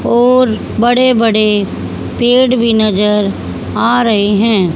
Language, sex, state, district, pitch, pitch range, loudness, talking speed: Hindi, female, Haryana, Charkhi Dadri, 225 Hz, 210-245 Hz, -12 LUFS, 115 wpm